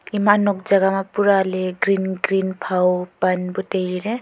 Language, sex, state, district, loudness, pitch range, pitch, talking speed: Wancho, female, Arunachal Pradesh, Longding, -20 LUFS, 185-200 Hz, 190 Hz, 170 wpm